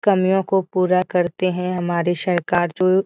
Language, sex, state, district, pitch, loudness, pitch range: Hindi, female, Bihar, Jahanabad, 180 Hz, -20 LUFS, 175-185 Hz